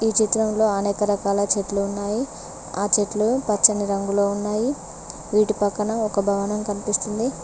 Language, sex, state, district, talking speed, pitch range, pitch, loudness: Telugu, female, Telangana, Mahabubabad, 130 wpm, 200-215 Hz, 210 Hz, -21 LUFS